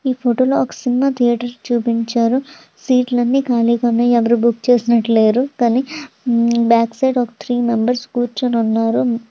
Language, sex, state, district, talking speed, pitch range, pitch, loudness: Telugu, female, Andhra Pradesh, Visakhapatnam, 150 wpm, 235-250 Hz, 240 Hz, -16 LUFS